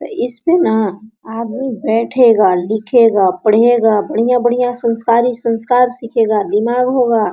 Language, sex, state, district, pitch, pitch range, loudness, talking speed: Hindi, female, Bihar, Araria, 230 Hz, 220-245 Hz, -14 LUFS, 100 wpm